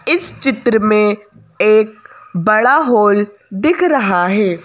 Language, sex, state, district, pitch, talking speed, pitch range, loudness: Hindi, female, Madhya Pradesh, Bhopal, 215 Hz, 115 wpm, 205-250 Hz, -13 LUFS